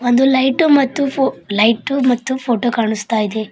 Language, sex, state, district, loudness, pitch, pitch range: Kannada, male, Karnataka, Bidar, -16 LUFS, 245 Hz, 220-270 Hz